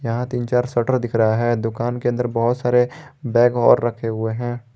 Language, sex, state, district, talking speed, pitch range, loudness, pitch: Hindi, male, Jharkhand, Garhwa, 215 wpm, 115-125 Hz, -19 LUFS, 120 Hz